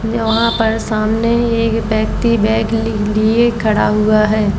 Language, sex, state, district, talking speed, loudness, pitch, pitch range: Hindi, female, Maharashtra, Chandrapur, 155 wpm, -14 LUFS, 220 Hz, 215-230 Hz